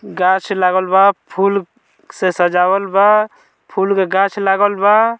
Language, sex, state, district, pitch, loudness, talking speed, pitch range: Bhojpuri, male, Bihar, Muzaffarpur, 195 Hz, -14 LUFS, 140 wpm, 185-200 Hz